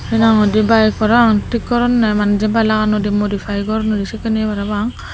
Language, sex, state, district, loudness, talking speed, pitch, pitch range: Chakma, female, Tripura, Dhalai, -15 LUFS, 220 wpm, 215 Hz, 210-225 Hz